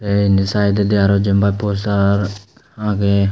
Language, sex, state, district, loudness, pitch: Chakma, male, Tripura, Unakoti, -16 LUFS, 100 Hz